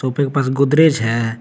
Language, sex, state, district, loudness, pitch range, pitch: Hindi, male, Jharkhand, Garhwa, -16 LUFS, 115-140 Hz, 135 Hz